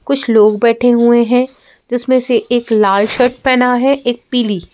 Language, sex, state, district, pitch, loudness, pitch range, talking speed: Hindi, female, Madhya Pradesh, Bhopal, 245 Hz, -12 LUFS, 230-250 Hz, 175 wpm